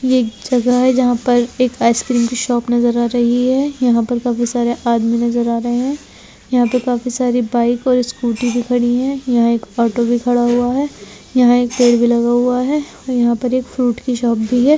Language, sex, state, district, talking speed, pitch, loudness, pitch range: Hindi, female, Bihar, East Champaran, 225 wpm, 245 Hz, -15 LUFS, 240-250 Hz